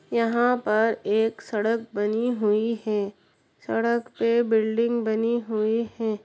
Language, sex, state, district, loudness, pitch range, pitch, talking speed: Hindi, female, Bihar, Saran, -24 LUFS, 215-235 Hz, 225 Hz, 125 wpm